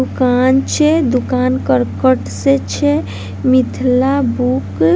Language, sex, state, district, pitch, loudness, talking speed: Maithili, female, Bihar, Vaishali, 250 Hz, -14 LUFS, 110 wpm